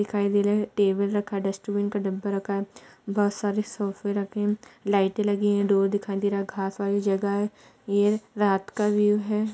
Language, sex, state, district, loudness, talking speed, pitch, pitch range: Hindi, female, Uttar Pradesh, Budaun, -26 LUFS, 215 wpm, 205 Hz, 200-210 Hz